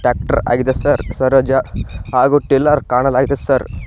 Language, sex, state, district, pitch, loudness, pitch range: Kannada, male, Karnataka, Koppal, 130 Hz, -15 LUFS, 120-140 Hz